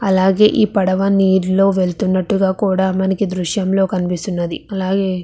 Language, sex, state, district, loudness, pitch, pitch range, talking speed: Telugu, female, Andhra Pradesh, Visakhapatnam, -16 LUFS, 190 Hz, 185-195 Hz, 125 wpm